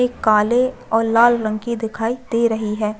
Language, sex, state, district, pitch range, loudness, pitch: Hindi, female, Chhattisgarh, Bastar, 215-235 Hz, -18 LUFS, 225 Hz